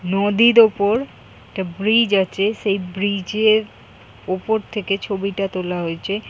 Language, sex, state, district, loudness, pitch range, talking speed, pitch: Bengali, female, West Bengal, Jhargram, -19 LUFS, 185-215 Hz, 125 wpm, 200 Hz